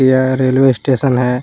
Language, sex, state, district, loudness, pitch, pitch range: Hindi, male, Jharkhand, Palamu, -13 LUFS, 130 Hz, 125-130 Hz